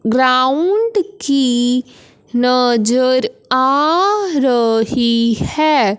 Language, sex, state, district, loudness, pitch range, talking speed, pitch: Hindi, male, Punjab, Fazilka, -15 LUFS, 240-305 Hz, 60 wpm, 255 Hz